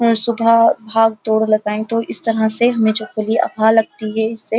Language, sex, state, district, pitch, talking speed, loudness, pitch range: Hindi, female, Uttar Pradesh, Muzaffarnagar, 220 Hz, 210 wpm, -16 LUFS, 220-230 Hz